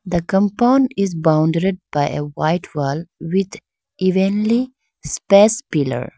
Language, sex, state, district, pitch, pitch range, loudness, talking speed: English, female, Arunachal Pradesh, Lower Dibang Valley, 185 Hz, 160-210 Hz, -18 LUFS, 115 wpm